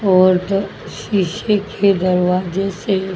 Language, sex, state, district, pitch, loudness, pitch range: Hindi, female, Haryana, Jhajjar, 195 Hz, -17 LUFS, 185-200 Hz